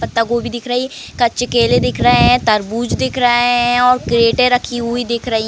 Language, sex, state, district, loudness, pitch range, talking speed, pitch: Hindi, female, Uttar Pradesh, Varanasi, -14 LUFS, 230-245 Hz, 230 wpm, 240 Hz